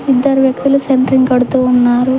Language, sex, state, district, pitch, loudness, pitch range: Telugu, female, Telangana, Mahabubabad, 260 Hz, -12 LUFS, 250-270 Hz